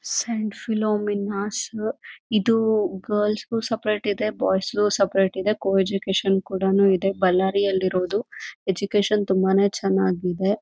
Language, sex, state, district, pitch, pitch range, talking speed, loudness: Kannada, female, Karnataka, Bellary, 200 Hz, 190-215 Hz, 105 wpm, -22 LUFS